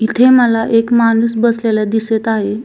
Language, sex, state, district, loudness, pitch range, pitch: Marathi, female, Maharashtra, Solapur, -13 LUFS, 220-235 Hz, 225 Hz